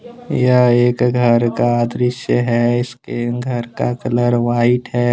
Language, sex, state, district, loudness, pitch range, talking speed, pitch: Hindi, male, Jharkhand, Deoghar, -16 LUFS, 120-125 Hz, 140 wpm, 120 Hz